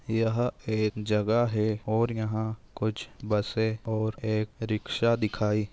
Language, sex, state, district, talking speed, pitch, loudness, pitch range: Hindi, male, Maharashtra, Nagpur, 125 wpm, 110 Hz, -29 LUFS, 105-115 Hz